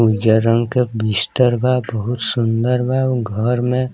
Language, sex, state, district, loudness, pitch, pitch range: Bhojpuri, male, Bihar, East Champaran, -17 LUFS, 120 Hz, 115-125 Hz